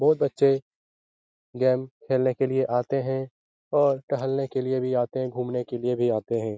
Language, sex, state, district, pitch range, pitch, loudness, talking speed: Hindi, male, Bihar, Lakhisarai, 125-135 Hz, 130 Hz, -25 LUFS, 190 wpm